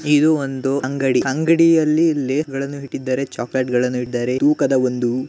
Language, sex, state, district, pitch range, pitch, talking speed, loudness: Kannada, male, Karnataka, Gulbarga, 130-150 Hz, 135 Hz, 150 wpm, -18 LUFS